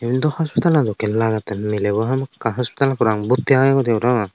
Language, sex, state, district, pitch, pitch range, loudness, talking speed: Chakma, male, Tripura, Unakoti, 120 Hz, 110-135 Hz, -19 LUFS, 180 wpm